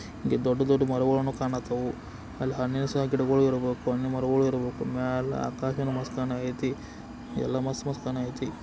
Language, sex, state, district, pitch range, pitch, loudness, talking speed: Kannada, male, Karnataka, Belgaum, 125-135 Hz, 130 Hz, -28 LUFS, 145 wpm